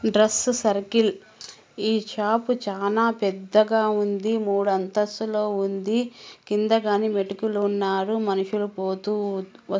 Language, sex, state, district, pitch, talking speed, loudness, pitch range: Telugu, female, Andhra Pradesh, Anantapur, 210 Hz, 100 wpm, -24 LUFS, 200-220 Hz